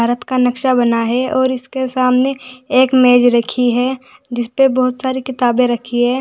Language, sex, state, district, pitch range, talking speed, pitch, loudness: Hindi, female, Uttar Pradesh, Saharanpur, 245-260 Hz, 165 wpm, 255 Hz, -15 LUFS